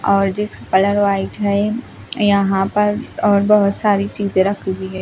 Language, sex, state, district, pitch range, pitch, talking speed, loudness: Hindi, female, Himachal Pradesh, Shimla, 195-205 Hz, 200 Hz, 165 wpm, -17 LUFS